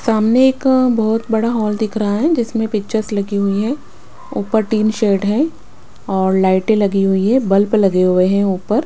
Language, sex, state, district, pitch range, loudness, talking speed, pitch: Hindi, female, Punjab, Pathankot, 200-225 Hz, -15 LUFS, 190 wpm, 215 Hz